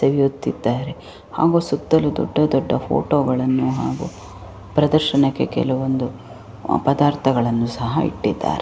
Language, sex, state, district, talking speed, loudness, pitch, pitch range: Kannada, female, Karnataka, Raichur, 100 wpm, -20 LUFS, 135 Hz, 120-150 Hz